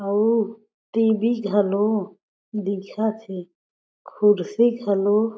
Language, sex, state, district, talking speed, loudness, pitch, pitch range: Chhattisgarhi, female, Chhattisgarh, Jashpur, 80 wpm, -22 LUFS, 210 Hz, 200-220 Hz